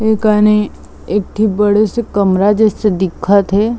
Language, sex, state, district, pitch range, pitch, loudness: Chhattisgarhi, female, Chhattisgarh, Bilaspur, 200-215 Hz, 210 Hz, -13 LUFS